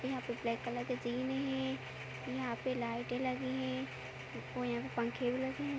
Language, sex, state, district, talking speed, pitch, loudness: Hindi, female, Uttar Pradesh, Jyotiba Phule Nagar, 195 wpm, 240 Hz, -39 LUFS